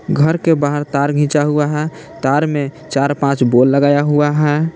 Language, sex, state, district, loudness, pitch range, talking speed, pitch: Hindi, male, Jharkhand, Palamu, -15 LUFS, 140-150 Hz, 190 wpm, 145 Hz